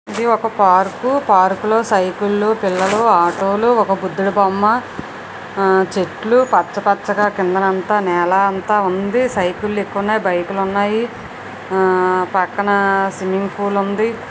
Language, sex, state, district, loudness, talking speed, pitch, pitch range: Telugu, female, Andhra Pradesh, Visakhapatnam, -16 LUFS, 120 wpm, 200 Hz, 190-210 Hz